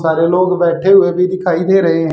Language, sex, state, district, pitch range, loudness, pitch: Hindi, male, Haryana, Jhajjar, 170-185 Hz, -12 LUFS, 180 Hz